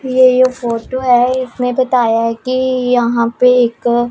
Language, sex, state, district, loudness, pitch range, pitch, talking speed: Hindi, female, Punjab, Pathankot, -13 LUFS, 235-255 Hz, 250 Hz, 145 wpm